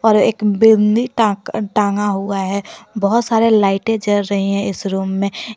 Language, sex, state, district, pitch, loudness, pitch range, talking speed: Hindi, female, Jharkhand, Garhwa, 205 Hz, -16 LUFS, 200-220 Hz, 185 wpm